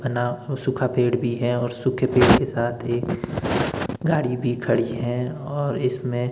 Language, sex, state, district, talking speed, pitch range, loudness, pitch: Hindi, male, Himachal Pradesh, Shimla, 180 wpm, 120-130 Hz, -23 LUFS, 125 Hz